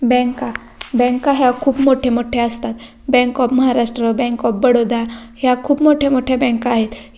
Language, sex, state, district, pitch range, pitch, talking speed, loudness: Marathi, female, Maharashtra, Pune, 235-260 Hz, 245 Hz, 160 wpm, -16 LUFS